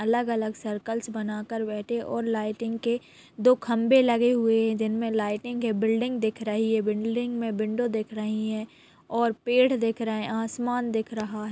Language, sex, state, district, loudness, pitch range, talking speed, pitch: Hindi, female, Chhattisgarh, Raigarh, -26 LUFS, 215-235 Hz, 175 wpm, 225 Hz